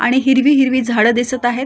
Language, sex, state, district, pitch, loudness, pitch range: Marathi, female, Maharashtra, Solapur, 255 Hz, -14 LUFS, 240-265 Hz